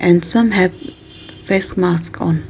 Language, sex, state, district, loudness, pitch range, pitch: English, female, Arunachal Pradesh, Lower Dibang Valley, -16 LUFS, 170-190 Hz, 180 Hz